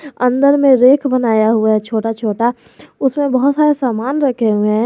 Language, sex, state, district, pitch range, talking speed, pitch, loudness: Hindi, male, Jharkhand, Garhwa, 225-275 Hz, 185 wpm, 250 Hz, -14 LUFS